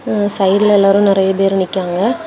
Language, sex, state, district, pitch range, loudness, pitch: Tamil, female, Tamil Nadu, Kanyakumari, 190-205 Hz, -13 LUFS, 195 Hz